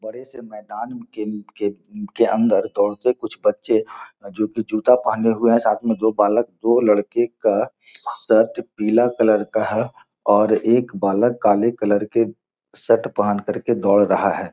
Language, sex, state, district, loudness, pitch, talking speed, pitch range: Hindi, male, Bihar, Gopalganj, -19 LUFS, 110 Hz, 155 wpm, 105-120 Hz